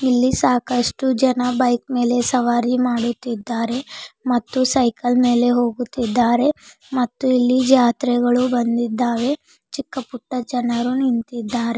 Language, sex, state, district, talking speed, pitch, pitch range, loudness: Kannada, female, Karnataka, Bidar, 95 wpm, 245 Hz, 240-255 Hz, -19 LUFS